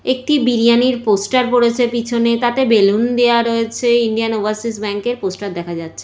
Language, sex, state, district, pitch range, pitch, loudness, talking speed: Bengali, female, West Bengal, Jalpaiguri, 215-245 Hz, 235 Hz, -16 LUFS, 160 wpm